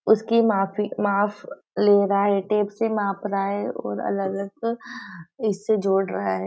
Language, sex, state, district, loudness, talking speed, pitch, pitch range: Hindi, female, Maharashtra, Nagpur, -23 LUFS, 165 wpm, 200 Hz, 195-215 Hz